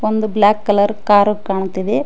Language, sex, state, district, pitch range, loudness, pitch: Kannada, female, Karnataka, Koppal, 200-215 Hz, -15 LUFS, 205 Hz